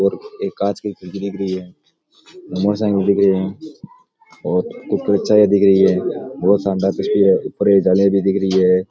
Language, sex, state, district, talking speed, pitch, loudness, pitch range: Rajasthani, male, Rajasthan, Nagaur, 195 wpm, 100 Hz, -17 LUFS, 95-100 Hz